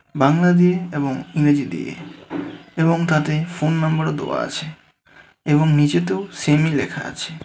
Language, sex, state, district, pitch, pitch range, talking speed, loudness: Bengali, male, West Bengal, Alipurduar, 155 Hz, 150-165 Hz, 120 wpm, -19 LUFS